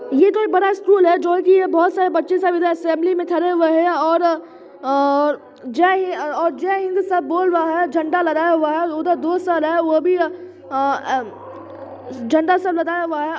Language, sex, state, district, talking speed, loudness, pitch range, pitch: Hindi, male, Bihar, Muzaffarpur, 195 wpm, -18 LUFS, 315-360 Hz, 335 Hz